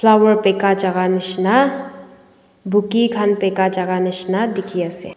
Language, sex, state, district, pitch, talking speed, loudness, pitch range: Nagamese, female, Nagaland, Dimapur, 195 Hz, 115 wpm, -17 LUFS, 185-215 Hz